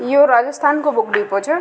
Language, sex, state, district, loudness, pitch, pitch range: Rajasthani, female, Rajasthan, Nagaur, -16 LUFS, 290 Hz, 240-295 Hz